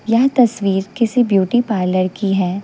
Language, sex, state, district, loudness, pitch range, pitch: Hindi, female, Chhattisgarh, Raipur, -16 LUFS, 190-240 Hz, 200 Hz